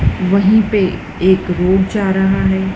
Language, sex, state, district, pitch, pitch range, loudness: Hindi, female, Madhya Pradesh, Dhar, 190 Hz, 190-195 Hz, -14 LUFS